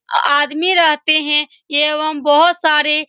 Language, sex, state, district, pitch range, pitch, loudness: Hindi, female, Bihar, Saran, 295-315 Hz, 305 Hz, -13 LUFS